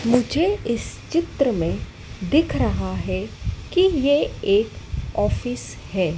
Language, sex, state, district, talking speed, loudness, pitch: Hindi, female, Madhya Pradesh, Dhar, 115 wpm, -22 LUFS, 225 Hz